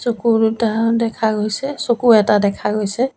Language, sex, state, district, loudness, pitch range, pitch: Assamese, female, Assam, Sonitpur, -17 LUFS, 215-240 Hz, 225 Hz